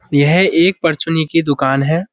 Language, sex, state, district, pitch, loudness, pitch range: Hindi, male, Uttar Pradesh, Budaun, 165 Hz, -14 LUFS, 145-170 Hz